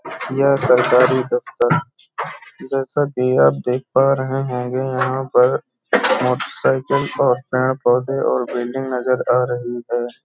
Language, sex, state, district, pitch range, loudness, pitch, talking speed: Hindi, male, Uttar Pradesh, Hamirpur, 125-135 Hz, -18 LUFS, 130 Hz, 125 wpm